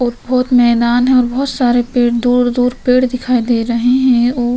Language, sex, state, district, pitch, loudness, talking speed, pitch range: Hindi, female, Uttar Pradesh, Hamirpur, 245 Hz, -13 LUFS, 195 wpm, 240-250 Hz